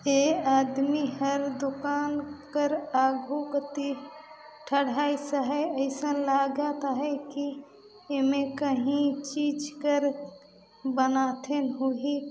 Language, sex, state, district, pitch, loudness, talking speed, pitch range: Chhattisgarhi, female, Chhattisgarh, Balrampur, 285 Hz, -28 LUFS, 95 wpm, 275-290 Hz